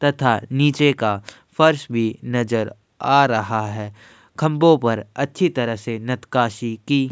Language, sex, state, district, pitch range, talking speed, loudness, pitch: Hindi, male, Uttar Pradesh, Jyotiba Phule Nagar, 110-140 Hz, 145 wpm, -20 LUFS, 120 Hz